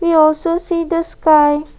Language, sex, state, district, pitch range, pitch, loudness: English, female, Assam, Kamrup Metropolitan, 305-335 Hz, 330 Hz, -14 LUFS